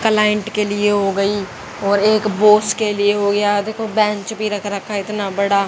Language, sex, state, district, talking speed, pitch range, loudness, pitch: Hindi, female, Haryana, Jhajjar, 210 wpm, 200-215 Hz, -17 LUFS, 205 Hz